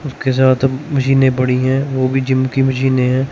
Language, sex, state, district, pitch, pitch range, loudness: Hindi, male, Chandigarh, Chandigarh, 130 Hz, 130-135 Hz, -15 LUFS